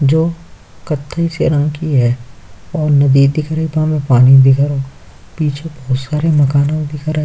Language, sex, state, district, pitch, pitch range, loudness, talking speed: Hindi, male, Uttar Pradesh, Jyotiba Phule Nagar, 150 Hz, 140-155 Hz, -14 LUFS, 180 wpm